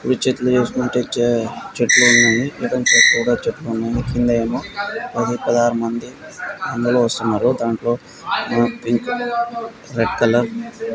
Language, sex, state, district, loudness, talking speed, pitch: Telugu, male, Telangana, Karimnagar, -17 LUFS, 90 wpm, 120 Hz